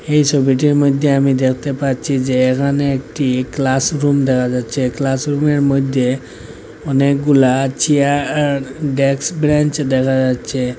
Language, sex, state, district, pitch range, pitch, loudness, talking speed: Bengali, male, Assam, Hailakandi, 130-145 Hz, 135 Hz, -15 LUFS, 120 wpm